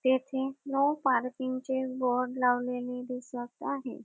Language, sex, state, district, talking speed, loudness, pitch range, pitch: Marathi, female, Maharashtra, Dhule, 120 wpm, -31 LUFS, 250-265 Hz, 255 Hz